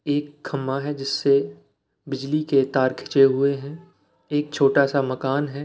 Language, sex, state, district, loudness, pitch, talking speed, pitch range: Hindi, male, Chhattisgarh, Bilaspur, -22 LUFS, 140 Hz, 170 wpm, 135-145 Hz